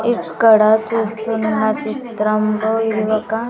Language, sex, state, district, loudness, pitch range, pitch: Telugu, female, Andhra Pradesh, Sri Satya Sai, -17 LUFS, 215-225 Hz, 220 Hz